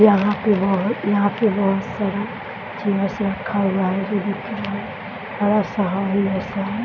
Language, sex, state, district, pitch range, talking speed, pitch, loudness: Hindi, female, Bihar, Samastipur, 195-205 Hz, 150 wpm, 200 Hz, -21 LUFS